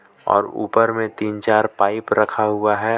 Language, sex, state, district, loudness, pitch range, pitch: Hindi, male, Jharkhand, Palamu, -19 LUFS, 105-110 Hz, 110 Hz